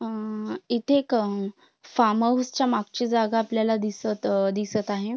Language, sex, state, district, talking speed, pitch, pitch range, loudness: Marathi, female, Maharashtra, Sindhudurg, 140 wpm, 220 Hz, 210-240 Hz, -25 LUFS